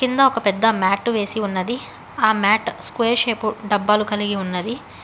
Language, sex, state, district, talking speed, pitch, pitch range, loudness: Telugu, female, Telangana, Hyderabad, 155 wpm, 215 Hz, 205-230 Hz, -20 LUFS